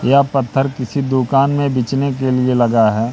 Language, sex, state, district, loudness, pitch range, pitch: Hindi, male, Madhya Pradesh, Katni, -16 LUFS, 125-140 Hz, 130 Hz